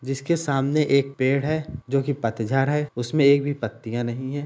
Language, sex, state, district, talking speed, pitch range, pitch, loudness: Hindi, male, Bihar, Gopalganj, 200 wpm, 130-145 Hz, 135 Hz, -23 LUFS